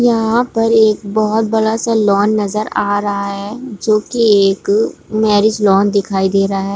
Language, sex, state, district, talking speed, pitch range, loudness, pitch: Hindi, female, Chhattisgarh, Bilaspur, 170 wpm, 200-220 Hz, -14 LUFS, 215 Hz